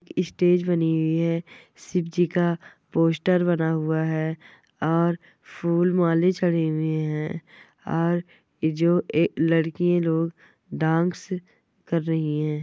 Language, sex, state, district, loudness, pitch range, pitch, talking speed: Hindi, female, West Bengal, North 24 Parganas, -24 LUFS, 160-175 Hz, 165 Hz, 120 wpm